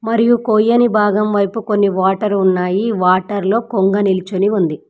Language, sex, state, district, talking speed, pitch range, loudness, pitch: Telugu, female, Telangana, Mahabubabad, 145 wpm, 190-220 Hz, -15 LUFS, 205 Hz